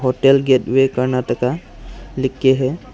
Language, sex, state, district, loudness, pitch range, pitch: Hindi, male, Arunachal Pradesh, Longding, -17 LUFS, 130-135 Hz, 130 Hz